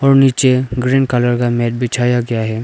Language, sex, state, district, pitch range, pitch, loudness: Hindi, male, Arunachal Pradesh, Lower Dibang Valley, 120-130 Hz, 125 Hz, -14 LUFS